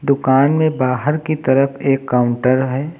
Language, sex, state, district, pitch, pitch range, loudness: Hindi, male, Uttar Pradesh, Lucknow, 135 Hz, 130-150 Hz, -16 LUFS